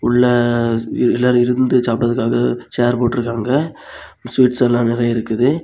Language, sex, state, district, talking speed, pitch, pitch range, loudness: Tamil, male, Tamil Nadu, Kanyakumari, 105 wpm, 120 Hz, 115-125 Hz, -16 LUFS